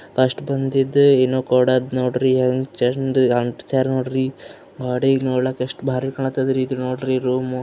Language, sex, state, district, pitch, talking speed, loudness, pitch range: Kannada, male, Karnataka, Gulbarga, 130 Hz, 135 wpm, -19 LUFS, 125-135 Hz